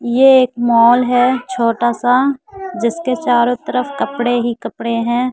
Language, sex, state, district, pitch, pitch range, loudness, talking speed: Hindi, female, Bihar, West Champaran, 245 Hz, 235-255 Hz, -15 LUFS, 145 wpm